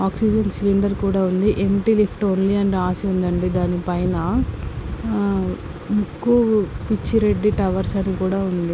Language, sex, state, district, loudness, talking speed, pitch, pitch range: Telugu, female, Andhra Pradesh, Guntur, -20 LUFS, 130 wpm, 195 Hz, 180-205 Hz